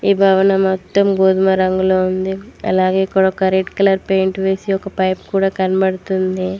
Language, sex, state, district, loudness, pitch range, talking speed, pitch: Telugu, female, Telangana, Mahabubabad, -16 LUFS, 190-195 Hz, 155 wpm, 190 Hz